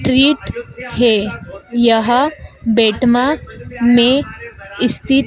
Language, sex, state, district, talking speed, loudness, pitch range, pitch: Hindi, female, Madhya Pradesh, Dhar, 70 wpm, -14 LUFS, 230-270 Hz, 240 Hz